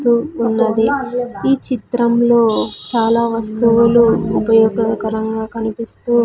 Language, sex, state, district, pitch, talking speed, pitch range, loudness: Telugu, female, Andhra Pradesh, Sri Satya Sai, 230 Hz, 75 wpm, 220-235 Hz, -15 LUFS